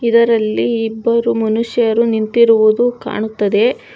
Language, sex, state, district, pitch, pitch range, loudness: Kannada, female, Karnataka, Bangalore, 230 Hz, 220-235 Hz, -14 LUFS